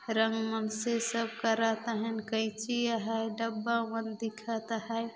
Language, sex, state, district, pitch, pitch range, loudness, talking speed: Chhattisgarhi, female, Chhattisgarh, Balrampur, 225 Hz, 220-230 Hz, -32 LUFS, 130 wpm